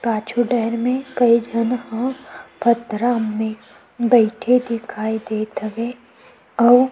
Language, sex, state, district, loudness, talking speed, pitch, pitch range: Chhattisgarhi, female, Chhattisgarh, Sukma, -19 LUFS, 120 wpm, 235 Hz, 220-245 Hz